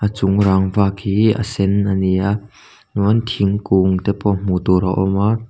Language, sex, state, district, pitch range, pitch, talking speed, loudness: Mizo, male, Mizoram, Aizawl, 95-105 Hz, 100 Hz, 185 wpm, -17 LUFS